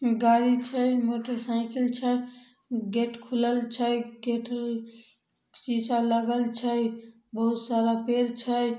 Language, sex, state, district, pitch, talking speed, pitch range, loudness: Maithili, female, Bihar, Samastipur, 235 Hz, 110 wpm, 230-245 Hz, -27 LUFS